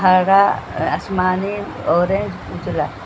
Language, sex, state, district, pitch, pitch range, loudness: Hindi, female, Bihar, Patna, 190 Hz, 185-200 Hz, -18 LUFS